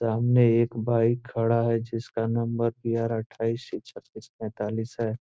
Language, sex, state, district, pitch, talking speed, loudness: Hindi, male, Bihar, Gopalganj, 115 Hz, 145 wpm, -26 LUFS